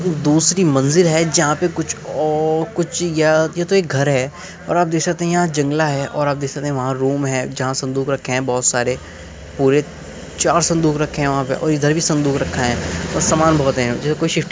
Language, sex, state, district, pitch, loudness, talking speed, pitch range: Hindi, male, Uttar Pradesh, Muzaffarnagar, 150 Hz, -17 LUFS, 250 wpm, 135-165 Hz